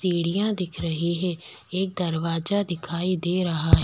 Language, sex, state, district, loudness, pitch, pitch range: Hindi, female, Chhattisgarh, Bastar, -25 LUFS, 175 Hz, 165-185 Hz